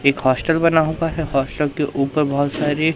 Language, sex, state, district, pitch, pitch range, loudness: Hindi, male, Madhya Pradesh, Umaria, 150 Hz, 140-160 Hz, -19 LUFS